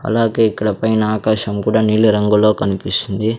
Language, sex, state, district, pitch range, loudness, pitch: Telugu, male, Andhra Pradesh, Sri Satya Sai, 105-110 Hz, -15 LUFS, 110 Hz